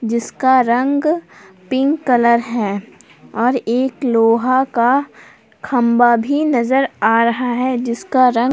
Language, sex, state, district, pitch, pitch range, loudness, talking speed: Hindi, female, Jharkhand, Palamu, 245 Hz, 235-260 Hz, -16 LUFS, 120 wpm